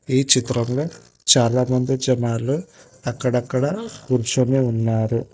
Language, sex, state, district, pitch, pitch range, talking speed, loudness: Telugu, male, Telangana, Hyderabad, 125 Hz, 120-135 Hz, 80 wpm, -20 LUFS